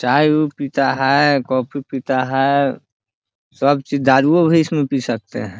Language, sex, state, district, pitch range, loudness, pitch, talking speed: Hindi, male, Bihar, Muzaffarpur, 130-145 Hz, -17 LUFS, 135 Hz, 160 wpm